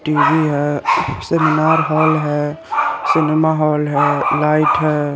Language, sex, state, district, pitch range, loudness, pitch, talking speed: Hindi, male, Chandigarh, Chandigarh, 150-160 Hz, -15 LUFS, 155 Hz, 115 wpm